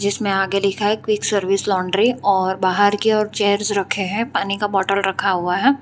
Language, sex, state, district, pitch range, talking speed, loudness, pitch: Hindi, female, Gujarat, Valsad, 195-210 Hz, 205 wpm, -19 LUFS, 200 Hz